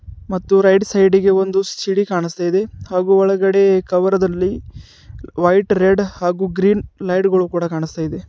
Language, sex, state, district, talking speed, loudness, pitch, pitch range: Kannada, male, Karnataka, Bidar, 135 wpm, -16 LUFS, 190 Hz, 180-195 Hz